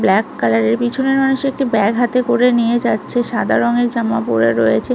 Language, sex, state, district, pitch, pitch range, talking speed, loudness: Bengali, female, West Bengal, Malda, 240 Hz, 205-250 Hz, 180 wpm, -16 LUFS